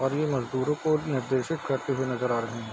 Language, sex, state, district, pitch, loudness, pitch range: Hindi, male, Bihar, East Champaran, 135 Hz, -28 LUFS, 125-150 Hz